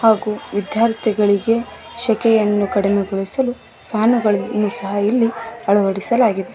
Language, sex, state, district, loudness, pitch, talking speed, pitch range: Kannada, female, Karnataka, Koppal, -18 LUFS, 215 Hz, 80 wpm, 200-230 Hz